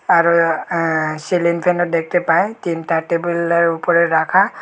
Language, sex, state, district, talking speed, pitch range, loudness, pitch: Bengali, male, Tripura, Unakoti, 170 wpm, 165-170 Hz, -17 LUFS, 170 Hz